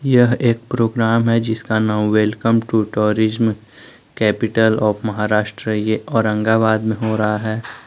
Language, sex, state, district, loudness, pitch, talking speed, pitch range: Hindi, male, Jharkhand, Palamu, -17 LUFS, 110 Hz, 145 wpm, 105-115 Hz